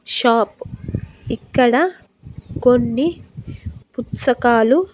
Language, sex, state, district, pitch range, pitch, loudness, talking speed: Telugu, female, Andhra Pradesh, Annamaya, 235-280 Hz, 245 Hz, -18 LUFS, 60 wpm